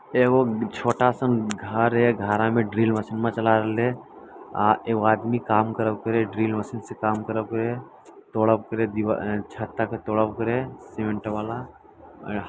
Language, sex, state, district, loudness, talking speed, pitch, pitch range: Maithili, male, Bihar, Lakhisarai, -24 LUFS, 150 wpm, 110 Hz, 110-115 Hz